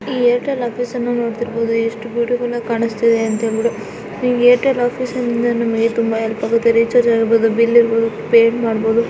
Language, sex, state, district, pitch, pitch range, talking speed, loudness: Kannada, female, Karnataka, Chamarajanagar, 230 Hz, 230-240 Hz, 165 wpm, -16 LUFS